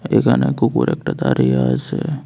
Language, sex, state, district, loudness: Bengali, male, Tripura, West Tripura, -17 LUFS